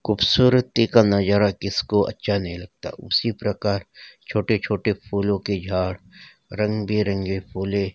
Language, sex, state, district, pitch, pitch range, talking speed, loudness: Hindi, male, Chhattisgarh, Rajnandgaon, 100 Hz, 100-105 Hz, 130 wpm, -22 LUFS